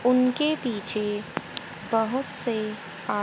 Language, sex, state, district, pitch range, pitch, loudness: Hindi, female, Haryana, Jhajjar, 215-250 Hz, 225 Hz, -25 LUFS